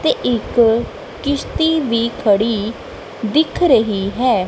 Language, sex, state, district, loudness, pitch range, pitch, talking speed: Punjabi, female, Punjab, Kapurthala, -17 LUFS, 220-280 Hz, 235 Hz, 105 wpm